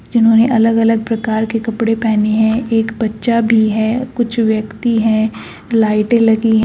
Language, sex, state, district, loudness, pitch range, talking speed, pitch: Hindi, female, Uttar Pradesh, Shamli, -14 LUFS, 220-230 Hz, 160 wpm, 225 Hz